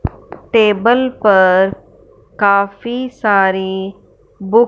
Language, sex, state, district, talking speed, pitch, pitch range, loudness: Hindi, female, Punjab, Fazilka, 75 wpm, 205 Hz, 190-235 Hz, -14 LUFS